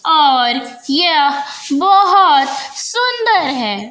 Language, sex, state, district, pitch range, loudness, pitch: Hindi, female, Bihar, West Champaran, 270-390 Hz, -13 LUFS, 285 Hz